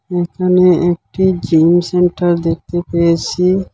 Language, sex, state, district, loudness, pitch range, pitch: Bengali, male, Assam, Hailakandi, -14 LUFS, 170-180 Hz, 175 Hz